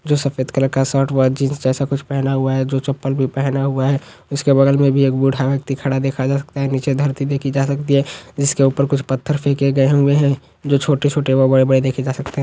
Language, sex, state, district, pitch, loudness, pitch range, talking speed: Hindi, male, Bihar, Jahanabad, 135 Hz, -17 LUFS, 135-140 Hz, 250 wpm